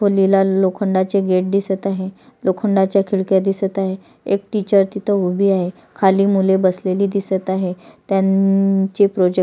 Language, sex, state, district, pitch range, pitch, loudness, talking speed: Marathi, female, Maharashtra, Solapur, 190-200 Hz, 195 Hz, -17 LUFS, 140 wpm